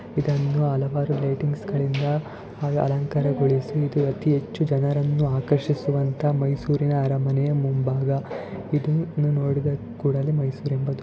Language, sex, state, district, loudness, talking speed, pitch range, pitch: Kannada, male, Karnataka, Mysore, -24 LUFS, 105 wpm, 135-145 Hz, 140 Hz